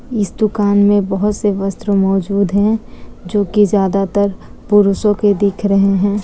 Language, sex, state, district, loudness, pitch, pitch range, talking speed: Hindi, female, Bihar, Kishanganj, -15 LUFS, 200 Hz, 195-210 Hz, 165 wpm